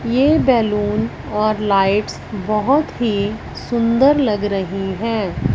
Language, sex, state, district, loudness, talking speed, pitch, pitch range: Hindi, female, Punjab, Fazilka, -18 LUFS, 110 wpm, 215 Hz, 200-235 Hz